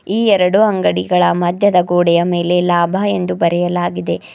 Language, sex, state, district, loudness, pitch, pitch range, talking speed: Kannada, female, Karnataka, Bidar, -14 LUFS, 175 Hz, 175-190 Hz, 125 wpm